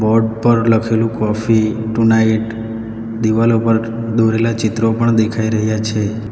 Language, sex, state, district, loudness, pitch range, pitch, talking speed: Gujarati, male, Gujarat, Valsad, -16 LUFS, 110-115 Hz, 110 Hz, 125 wpm